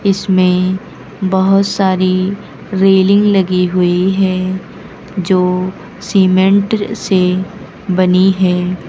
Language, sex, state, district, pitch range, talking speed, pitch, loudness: Hindi, female, Uttar Pradesh, Lucknow, 185-195 Hz, 80 wpm, 190 Hz, -13 LUFS